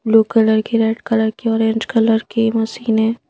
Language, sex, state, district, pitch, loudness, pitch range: Hindi, female, Madhya Pradesh, Bhopal, 225 Hz, -16 LUFS, 220-225 Hz